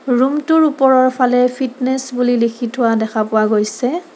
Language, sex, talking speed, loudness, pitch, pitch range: Assamese, female, 130 wpm, -15 LUFS, 250 Hz, 235-265 Hz